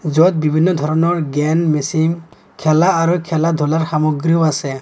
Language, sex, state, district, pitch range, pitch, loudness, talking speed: Assamese, male, Assam, Kamrup Metropolitan, 155-165 Hz, 160 Hz, -16 LUFS, 125 wpm